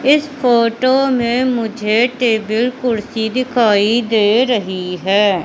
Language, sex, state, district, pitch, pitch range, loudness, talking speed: Hindi, female, Madhya Pradesh, Katni, 230 Hz, 215-250 Hz, -15 LUFS, 110 wpm